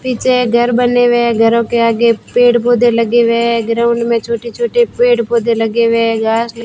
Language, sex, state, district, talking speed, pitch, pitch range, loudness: Hindi, female, Rajasthan, Bikaner, 225 wpm, 235 Hz, 230-245 Hz, -12 LUFS